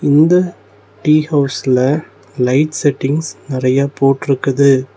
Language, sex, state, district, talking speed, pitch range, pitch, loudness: Tamil, male, Tamil Nadu, Nilgiris, 85 wpm, 130-150 Hz, 140 Hz, -14 LUFS